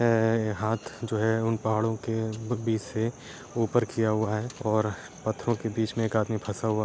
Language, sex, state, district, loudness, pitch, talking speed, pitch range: Hindi, male, Uttar Pradesh, Etah, -28 LUFS, 110 Hz, 200 wpm, 110-115 Hz